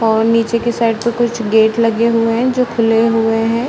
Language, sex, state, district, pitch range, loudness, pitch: Hindi, female, Uttar Pradesh, Varanasi, 225-235 Hz, -14 LUFS, 230 Hz